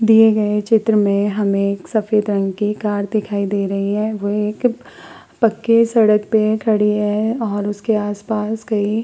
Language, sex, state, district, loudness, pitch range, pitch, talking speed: Hindi, female, Uttar Pradesh, Hamirpur, -17 LUFS, 205-220 Hz, 210 Hz, 175 wpm